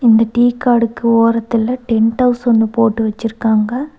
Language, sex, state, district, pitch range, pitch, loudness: Tamil, female, Tamil Nadu, Nilgiris, 225-245 Hz, 230 Hz, -14 LUFS